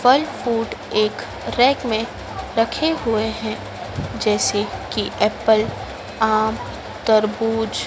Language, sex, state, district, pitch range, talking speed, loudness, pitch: Hindi, female, Madhya Pradesh, Dhar, 215-235 Hz, 100 wpm, -20 LUFS, 225 Hz